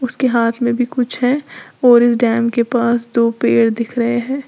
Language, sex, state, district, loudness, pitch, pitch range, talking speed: Hindi, female, Uttar Pradesh, Lalitpur, -15 LUFS, 240 Hz, 235-250 Hz, 215 wpm